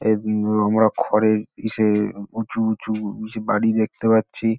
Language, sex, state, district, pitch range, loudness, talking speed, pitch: Bengali, male, West Bengal, Dakshin Dinajpur, 105-110 Hz, -21 LUFS, 130 wpm, 110 Hz